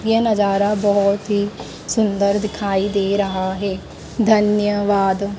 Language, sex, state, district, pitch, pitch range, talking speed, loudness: Hindi, female, Madhya Pradesh, Dhar, 205 Hz, 200-210 Hz, 110 wpm, -18 LUFS